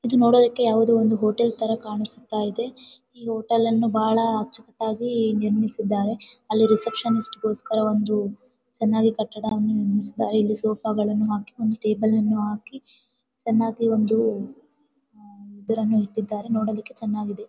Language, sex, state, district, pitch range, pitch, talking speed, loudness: Kannada, female, Karnataka, Bellary, 215-230 Hz, 220 Hz, 120 wpm, -23 LUFS